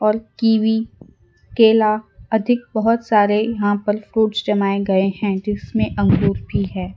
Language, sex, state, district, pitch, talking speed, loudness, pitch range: Hindi, female, Gujarat, Valsad, 210 Hz, 140 wpm, -18 LUFS, 195-220 Hz